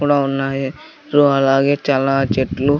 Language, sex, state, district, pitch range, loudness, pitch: Telugu, male, Andhra Pradesh, Sri Satya Sai, 135-145 Hz, -17 LUFS, 135 Hz